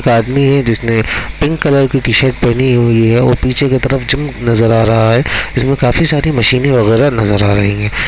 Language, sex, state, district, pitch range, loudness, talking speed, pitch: Hindi, male, Chhattisgarh, Rajnandgaon, 115-135 Hz, -11 LUFS, 215 wpm, 125 Hz